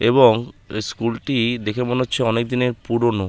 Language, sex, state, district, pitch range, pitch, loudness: Bengali, male, West Bengal, Malda, 115-125 Hz, 120 Hz, -20 LUFS